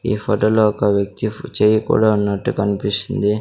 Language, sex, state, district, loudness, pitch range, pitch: Telugu, male, Andhra Pradesh, Sri Satya Sai, -18 LUFS, 105-110 Hz, 105 Hz